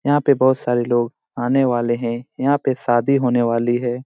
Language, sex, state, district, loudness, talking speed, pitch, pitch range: Hindi, male, Bihar, Jamui, -19 LUFS, 205 wpm, 120 Hz, 120-135 Hz